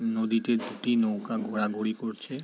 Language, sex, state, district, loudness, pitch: Bengali, male, West Bengal, Jalpaiguri, -29 LUFS, 115 Hz